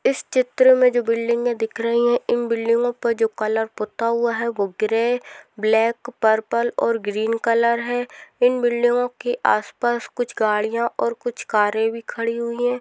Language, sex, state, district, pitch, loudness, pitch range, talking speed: Hindi, female, Rajasthan, Nagaur, 235 Hz, -21 LUFS, 225-240 Hz, 180 wpm